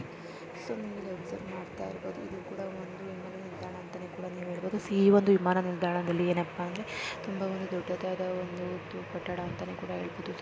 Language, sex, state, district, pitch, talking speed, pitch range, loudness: Kannada, female, Karnataka, Dharwad, 180 Hz, 120 wpm, 175-190 Hz, -33 LUFS